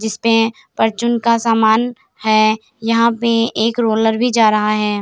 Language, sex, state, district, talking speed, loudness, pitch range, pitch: Hindi, female, Bihar, Samastipur, 155 wpm, -15 LUFS, 220-230 Hz, 225 Hz